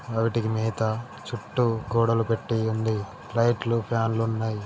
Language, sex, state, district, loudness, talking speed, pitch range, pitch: Telugu, male, Telangana, Karimnagar, -26 LUFS, 130 wpm, 110-115 Hz, 115 Hz